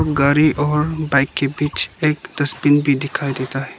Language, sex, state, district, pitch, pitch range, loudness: Hindi, male, Arunachal Pradesh, Lower Dibang Valley, 145 Hz, 140-150 Hz, -18 LUFS